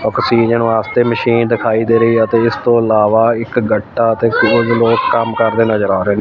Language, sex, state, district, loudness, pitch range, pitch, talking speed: Punjabi, male, Punjab, Fazilka, -13 LUFS, 110-115 Hz, 115 Hz, 185 wpm